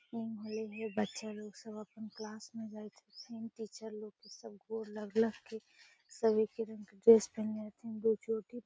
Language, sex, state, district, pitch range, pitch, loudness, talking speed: Magahi, female, Bihar, Gaya, 215-225 Hz, 220 Hz, -36 LUFS, 180 wpm